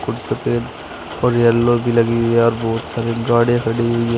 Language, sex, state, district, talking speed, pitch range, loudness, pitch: Hindi, male, Uttar Pradesh, Shamli, 215 wpm, 115-120 Hz, -17 LUFS, 115 Hz